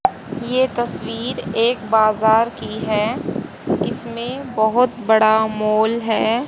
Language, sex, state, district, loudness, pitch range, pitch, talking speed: Hindi, female, Haryana, Charkhi Dadri, -19 LUFS, 220-245 Hz, 225 Hz, 100 wpm